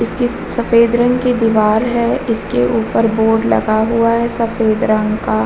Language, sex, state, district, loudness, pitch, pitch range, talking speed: Hindi, female, Bihar, Vaishali, -14 LUFS, 225 Hz, 215-235 Hz, 165 wpm